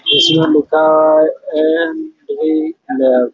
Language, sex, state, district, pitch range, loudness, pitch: Hindi, male, Chhattisgarh, Raigarh, 155-215 Hz, -13 LUFS, 155 Hz